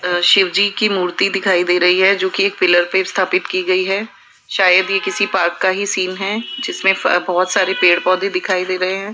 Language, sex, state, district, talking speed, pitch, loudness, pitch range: Hindi, female, Rajasthan, Jaipur, 215 wpm, 185 Hz, -15 LUFS, 180-195 Hz